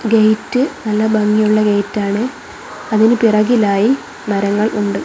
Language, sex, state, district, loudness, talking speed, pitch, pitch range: Malayalam, female, Kerala, Kozhikode, -15 LUFS, 105 wpm, 215 Hz, 210-225 Hz